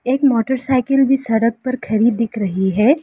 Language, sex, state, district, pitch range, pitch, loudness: Hindi, female, Arunachal Pradesh, Lower Dibang Valley, 225-265 Hz, 245 Hz, -17 LUFS